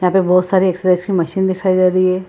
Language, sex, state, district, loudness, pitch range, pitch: Hindi, female, Bihar, Gaya, -15 LUFS, 180-190 Hz, 185 Hz